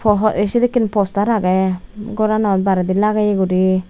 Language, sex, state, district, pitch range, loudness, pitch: Chakma, female, Tripura, Unakoti, 190-215 Hz, -17 LUFS, 205 Hz